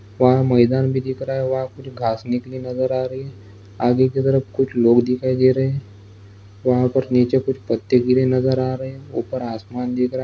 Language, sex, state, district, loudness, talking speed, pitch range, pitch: Hindi, male, Chhattisgarh, Jashpur, -19 LUFS, 230 wpm, 120-130 Hz, 130 Hz